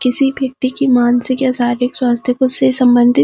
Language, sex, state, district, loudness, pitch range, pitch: Hindi, female, Uttarakhand, Uttarkashi, -14 LUFS, 245-260 Hz, 255 Hz